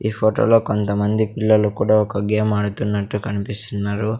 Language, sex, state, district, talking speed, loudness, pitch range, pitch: Telugu, male, Andhra Pradesh, Sri Satya Sai, 145 wpm, -19 LUFS, 105-110 Hz, 105 Hz